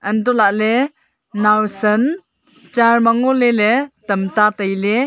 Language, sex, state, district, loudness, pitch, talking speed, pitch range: Wancho, female, Arunachal Pradesh, Longding, -16 LUFS, 225 Hz, 120 wpm, 210-250 Hz